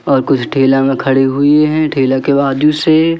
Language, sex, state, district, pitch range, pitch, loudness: Hindi, male, Madhya Pradesh, Katni, 135-150 Hz, 140 Hz, -12 LUFS